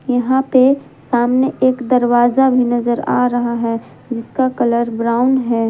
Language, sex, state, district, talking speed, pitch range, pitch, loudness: Hindi, female, Jharkhand, Palamu, 145 wpm, 240-255 Hz, 245 Hz, -15 LUFS